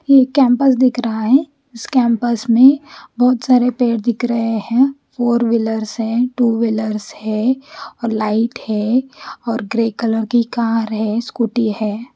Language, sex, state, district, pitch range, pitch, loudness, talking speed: Hindi, female, Chandigarh, Chandigarh, 225-250 Hz, 235 Hz, -16 LUFS, 150 wpm